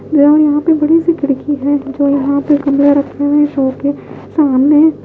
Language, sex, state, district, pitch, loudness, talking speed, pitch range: Hindi, female, Himachal Pradesh, Shimla, 285 Hz, -12 LUFS, 190 wpm, 280-300 Hz